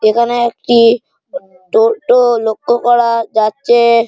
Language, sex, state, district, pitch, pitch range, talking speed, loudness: Bengali, male, West Bengal, Malda, 235 Hz, 230-245 Hz, 90 wpm, -12 LUFS